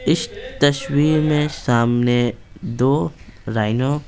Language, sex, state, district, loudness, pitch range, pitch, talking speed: Hindi, male, Bihar, Patna, -19 LUFS, 115-145 Hz, 125 Hz, 105 wpm